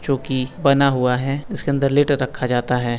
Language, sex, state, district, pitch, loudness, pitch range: Hindi, male, Uttar Pradesh, Etah, 135 Hz, -19 LUFS, 125-140 Hz